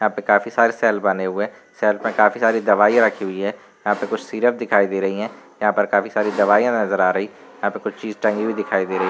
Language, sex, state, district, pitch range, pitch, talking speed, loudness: Hindi, male, Uttar Pradesh, Varanasi, 100-110 Hz, 105 Hz, 270 wpm, -19 LUFS